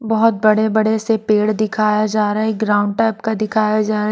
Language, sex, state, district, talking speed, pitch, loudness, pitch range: Hindi, female, Maharashtra, Mumbai Suburban, 220 wpm, 215 Hz, -16 LUFS, 215-220 Hz